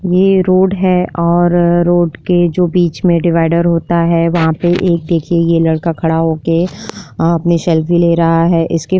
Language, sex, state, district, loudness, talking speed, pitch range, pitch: Hindi, female, Uttar Pradesh, Jyotiba Phule Nagar, -12 LUFS, 175 wpm, 165-175 Hz, 170 Hz